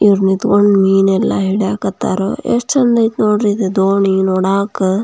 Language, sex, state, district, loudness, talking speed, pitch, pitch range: Kannada, female, Karnataka, Belgaum, -14 LUFS, 145 wpm, 200 Hz, 195-210 Hz